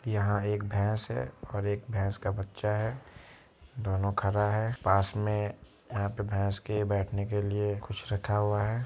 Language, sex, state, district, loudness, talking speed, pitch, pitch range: Hindi, male, Bihar, Muzaffarpur, -31 LUFS, 175 wpm, 105 Hz, 100-105 Hz